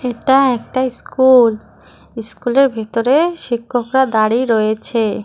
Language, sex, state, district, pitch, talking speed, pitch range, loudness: Bengali, female, West Bengal, Cooch Behar, 245 Hz, 90 wpm, 225-260 Hz, -15 LUFS